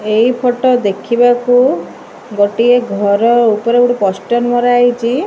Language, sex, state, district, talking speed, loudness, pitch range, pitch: Odia, male, Odisha, Malkangiri, 125 wpm, -12 LUFS, 215-245 Hz, 240 Hz